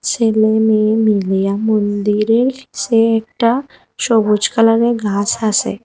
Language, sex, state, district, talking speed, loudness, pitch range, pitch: Bengali, female, Assam, Hailakandi, 115 wpm, -15 LUFS, 210-230 Hz, 220 Hz